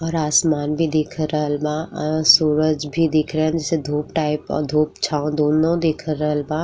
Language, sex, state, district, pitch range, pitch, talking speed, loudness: Bhojpuri, female, Uttar Pradesh, Ghazipur, 150-160 Hz, 155 Hz, 180 wpm, -19 LUFS